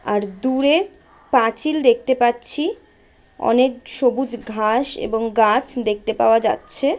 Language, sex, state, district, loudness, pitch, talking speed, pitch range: Bengali, female, West Bengal, Jhargram, -17 LUFS, 250 Hz, 110 wpm, 225-275 Hz